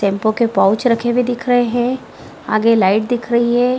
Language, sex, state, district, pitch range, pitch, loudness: Hindi, female, Bihar, Samastipur, 220-245 Hz, 235 Hz, -15 LUFS